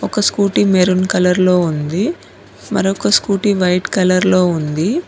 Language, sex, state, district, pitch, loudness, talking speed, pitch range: Telugu, female, Telangana, Mahabubabad, 185 Hz, -15 LUFS, 140 wpm, 180-200 Hz